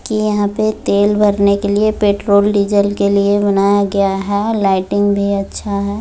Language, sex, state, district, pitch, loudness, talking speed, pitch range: Hindi, female, Bihar, Muzaffarpur, 200 Hz, -14 LUFS, 190 wpm, 200-205 Hz